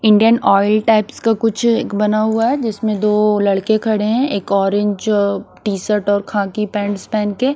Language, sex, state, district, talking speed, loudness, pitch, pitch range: Hindi, female, Odisha, Nuapada, 185 wpm, -16 LUFS, 210 Hz, 205-220 Hz